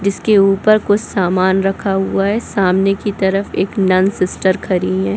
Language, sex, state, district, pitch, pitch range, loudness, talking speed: Hindi, female, Chhattisgarh, Bilaspur, 195 Hz, 185-200 Hz, -15 LUFS, 175 wpm